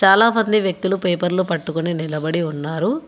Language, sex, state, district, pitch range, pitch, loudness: Telugu, female, Telangana, Hyderabad, 165-195 Hz, 180 Hz, -19 LUFS